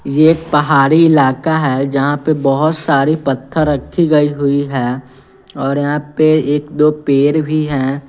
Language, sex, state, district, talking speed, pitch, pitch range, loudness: Hindi, female, Bihar, West Champaran, 165 wpm, 145 Hz, 140-155 Hz, -14 LUFS